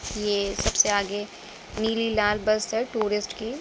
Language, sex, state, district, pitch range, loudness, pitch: Hindi, female, Uttar Pradesh, Budaun, 205-220 Hz, -25 LUFS, 210 Hz